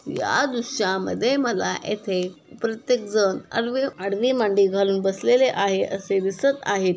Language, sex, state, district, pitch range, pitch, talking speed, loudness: Marathi, female, Maharashtra, Sindhudurg, 195-245 Hz, 210 Hz, 130 wpm, -23 LUFS